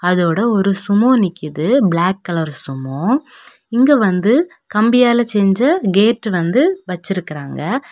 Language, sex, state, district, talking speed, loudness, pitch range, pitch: Tamil, female, Tamil Nadu, Kanyakumari, 105 wpm, -15 LUFS, 175-245 Hz, 200 Hz